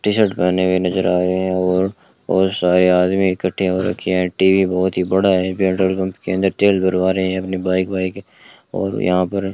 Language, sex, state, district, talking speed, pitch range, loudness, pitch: Hindi, male, Rajasthan, Bikaner, 220 wpm, 90-95 Hz, -17 LUFS, 95 Hz